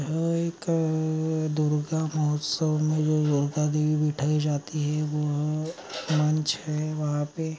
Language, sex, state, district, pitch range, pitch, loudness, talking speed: Magahi, male, Bihar, Gaya, 150-160 Hz, 155 Hz, -26 LUFS, 120 wpm